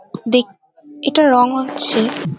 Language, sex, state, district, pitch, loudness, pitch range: Bengali, female, West Bengal, Kolkata, 250 Hz, -15 LUFS, 225-280 Hz